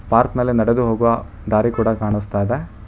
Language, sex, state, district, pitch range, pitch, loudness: Kannada, male, Karnataka, Bangalore, 105-120 Hz, 110 Hz, -18 LUFS